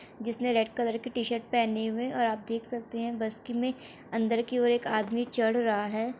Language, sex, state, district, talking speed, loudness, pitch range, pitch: Hindi, female, Bihar, Bhagalpur, 195 wpm, -30 LUFS, 225-240 Hz, 230 Hz